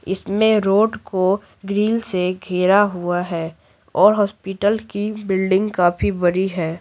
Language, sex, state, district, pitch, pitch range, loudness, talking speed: Hindi, female, Bihar, Patna, 195 Hz, 180-205 Hz, -19 LUFS, 130 wpm